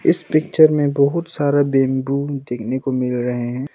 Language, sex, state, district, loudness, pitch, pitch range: Hindi, male, Arunachal Pradesh, Longding, -18 LUFS, 140 Hz, 130-145 Hz